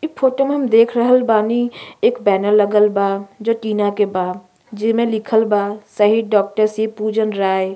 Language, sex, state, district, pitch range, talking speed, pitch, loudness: Bhojpuri, female, Uttar Pradesh, Ghazipur, 205-230 Hz, 180 wpm, 215 Hz, -17 LUFS